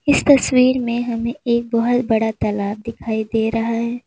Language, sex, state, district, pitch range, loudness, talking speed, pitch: Hindi, female, Uttar Pradesh, Lalitpur, 225-245 Hz, -18 LUFS, 175 wpm, 235 Hz